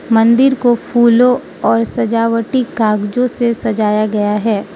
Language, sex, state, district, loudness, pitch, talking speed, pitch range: Hindi, female, Manipur, Imphal West, -13 LUFS, 230 Hz, 125 wpm, 220-245 Hz